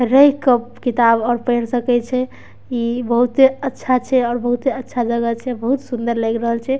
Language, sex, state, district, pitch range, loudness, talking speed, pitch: Maithili, female, Bihar, Darbhanga, 235-255 Hz, -18 LUFS, 205 wpm, 245 Hz